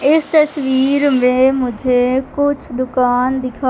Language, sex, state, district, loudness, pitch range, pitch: Hindi, female, Madhya Pradesh, Katni, -15 LUFS, 250-285 Hz, 260 Hz